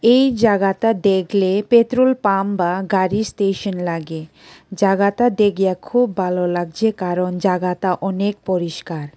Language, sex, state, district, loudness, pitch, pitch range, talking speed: Bengali, female, Tripura, West Tripura, -18 LUFS, 195 Hz, 180-210 Hz, 110 wpm